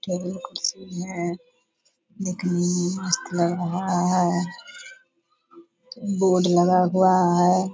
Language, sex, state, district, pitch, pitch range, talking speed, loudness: Hindi, female, Bihar, Purnia, 180 Hz, 175-195 Hz, 100 wpm, -23 LUFS